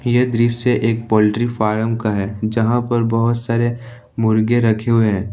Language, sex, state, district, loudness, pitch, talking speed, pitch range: Hindi, male, Jharkhand, Ranchi, -17 LUFS, 115 Hz, 170 wpm, 110-120 Hz